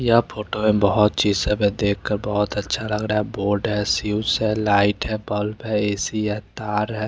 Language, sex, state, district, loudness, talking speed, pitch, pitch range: Hindi, male, Chandigarh, Chandigarh, -21 LUFS, 205 wpm, 105 Hz, 105-110 Hz